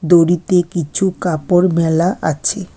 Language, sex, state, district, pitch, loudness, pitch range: Bengali, female, West Bengal, Alipurduar, 175 Hz, -15 LUFS, 165-185 Hz